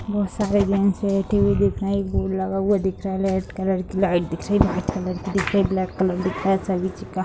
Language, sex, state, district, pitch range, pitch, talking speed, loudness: Hindi, female, Bihar, Sitamarhi, 185-195 Hz, 190 Hz, 305 wpm, -22 LUFS